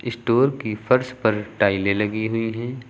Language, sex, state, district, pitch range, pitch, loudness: Hindi, male, Uttar Pradesh, Lucknow, 105-125 Hz, 115 Hz, -22 LUFS